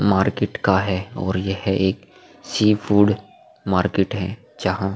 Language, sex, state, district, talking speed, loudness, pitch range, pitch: Hindi, male, Bihar, Vaishali, 145 wpm, -21 LUFS, 95-105 Hz, 95 Hz